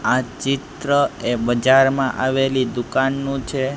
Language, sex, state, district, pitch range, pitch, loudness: Gujarati, male, Gujarat, Gandhinagar, 130-135 Hz, 135 Hz, -19 LUFS